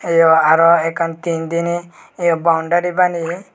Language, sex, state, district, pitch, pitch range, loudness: Chakma, male, Tripura, West Tripura, 170 Hz, 165-175 Hz, -15 LUFS